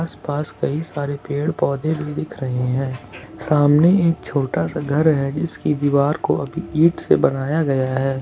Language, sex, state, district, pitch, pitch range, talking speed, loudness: Hindi, male, Jharkhand, Ranchi, 145 Hz, 135-155 Hz, 175 wpm, -20 LUFS